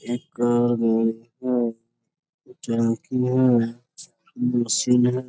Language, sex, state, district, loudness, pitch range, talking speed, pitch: Hindi, male, Jharkhand, Sahebganj, -22 LUFS, 115-125 Hz, 55 wpm, 120 Hz